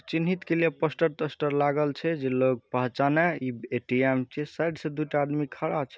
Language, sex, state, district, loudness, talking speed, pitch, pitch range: Hindi, male, Bihar, Saharsa, -27 LUFS, 180 wpm, 150 Hz, 130-160 Hz